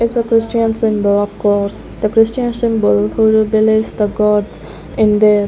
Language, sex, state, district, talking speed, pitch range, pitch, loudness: English, female, Chandigarh, Chandigarh, 165 wpm, 205-225 Hz, 215 Hz, -14 LUFS